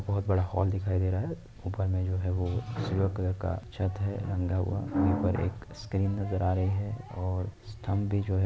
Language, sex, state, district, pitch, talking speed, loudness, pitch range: Hindi, male, Bihar, Saharsa, 95 Hz, 225 wpm, -31 LUFS, 95-100 Hz